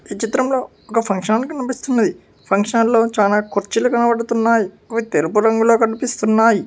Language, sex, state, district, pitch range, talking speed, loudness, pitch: Telugu, male, Telangana, Hyderabad, 210-235 Hz, 135 wpm, -17 LUFS, 225 Hz